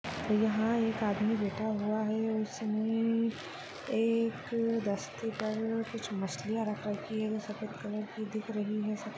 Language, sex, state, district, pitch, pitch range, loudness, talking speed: Hindi, female, Maharashtra, Nagpur, 215 Hz, 210-225 Hz, -33 LUFS, 145 wpm